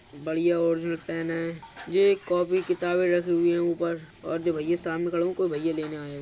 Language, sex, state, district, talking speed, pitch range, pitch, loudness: Bundeli, male, Uttar Pradesh, Budaun, 230 wpm, 165-175 Hz, 170 Hz, -26 LUFS